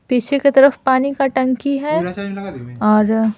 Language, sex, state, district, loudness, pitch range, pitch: Hindi, female, Bihar, Patna, -16 LUFS, 210-275 Hz, 255 Hz